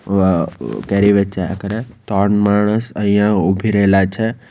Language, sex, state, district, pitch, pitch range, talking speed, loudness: Gujarati, male, Gujarat, Valsad, 100 Hz, 95-105 Hz, 120 wpm, -16 LUFS